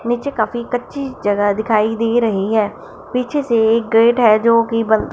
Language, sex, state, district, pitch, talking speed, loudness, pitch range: Hindi, female, Punjab, Fazilka, 230 Hz, 185 wpm, -16 LUFS, 220-240 Hz